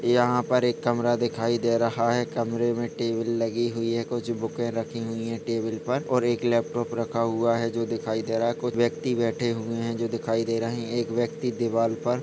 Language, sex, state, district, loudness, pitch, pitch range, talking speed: Hindi, male, Jharkhand, Sahebganj, -26 LUFS, 115 Hz, 115-120 Hz, 225 wpm